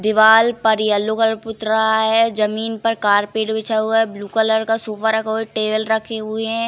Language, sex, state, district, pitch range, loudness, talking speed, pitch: Hindi, female, Uttar Pradesh, Jalaun, 215-225 Hz, -17 LUFS, 215 wpm, 220 Hz